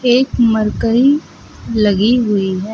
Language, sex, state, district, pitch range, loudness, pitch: Hindi, female, Uttar Pradesh, Lucknow, 210-245 Hz, -14 LUFS, 225 Hz